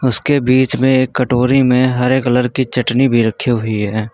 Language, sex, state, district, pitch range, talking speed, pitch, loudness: Hindi, male, Uttar Pradesh, Lucknow, 120-130 Hz, 205 wpm, 125 Hz, -14 LUFS